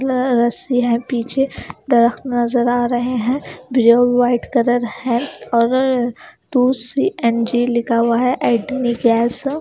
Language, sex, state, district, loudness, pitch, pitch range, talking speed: Hindi, female, Haryana, Charkhi Dadri, -17 LUFS, 245 Hz, 235-255 Hz, 120 wpm